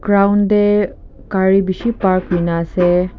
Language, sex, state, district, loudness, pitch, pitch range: Nagamese, female, Nagaland, Kohima, -15 LUFS, 190 Hz, 180-205 Hz